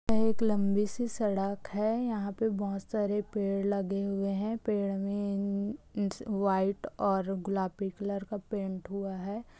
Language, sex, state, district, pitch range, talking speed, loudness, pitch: Hindi, female, Chhattisgarh, Raigarh, 195-215 Hz, 155 wpm, -32 LUFS, 200 Hz